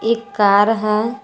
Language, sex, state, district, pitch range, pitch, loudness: Hindi, female, Jharkhand, Garhwa, 205-225 Hz, 215 Hz, -16 LUFS